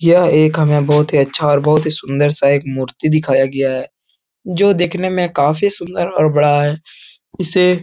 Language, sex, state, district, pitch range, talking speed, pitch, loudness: Hindi, male, Uttar Pradesh, Etah, 140-175 Hz, 200 wpm, 155 Hz, -15 LUFS